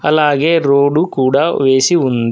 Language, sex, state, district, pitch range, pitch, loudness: Telugu, male, Telangana, Adilabad, 135-155 Hz, 140 Hz, -12 LUFS